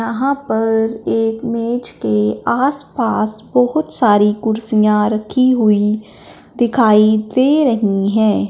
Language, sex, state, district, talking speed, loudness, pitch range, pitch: Hindi, male, Punjab, Fazilka, 105 wpm, -15 LUFS, 215-245 Hz, 220 Hz